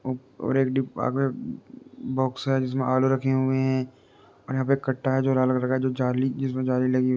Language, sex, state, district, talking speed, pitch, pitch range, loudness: Hindi, male, Uttar Pradesh, Jalaun, 225 wpm, 130 Hz, 130-135 Hz, -25 LUFS